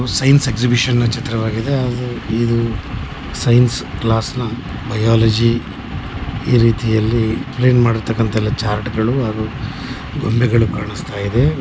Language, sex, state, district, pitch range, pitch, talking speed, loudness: Kannada, male, Karnataka, Chamarajanagar, 110-125 Hz, 115 Hz, 95 wpm, -17 LUFS